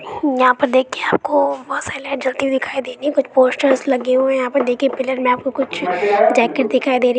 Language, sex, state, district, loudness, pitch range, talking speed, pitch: Hindi, male, Uttar Pradesh, Ghazipur, -17 LUFS, 255-275 Hz, 240 wpm, 265 Hz